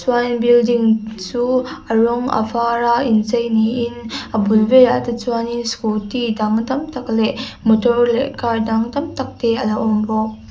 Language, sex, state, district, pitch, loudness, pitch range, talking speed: Mizo, female, Mizoram, Aizawl, 235 Hz, -17 LUFS, 220-245 Hz, 175 wpm